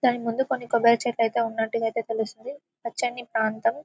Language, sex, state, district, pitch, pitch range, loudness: Telugu, female, Telangana, Karimnagar, 235 Hz, 225-245 Hz, -25 LUFS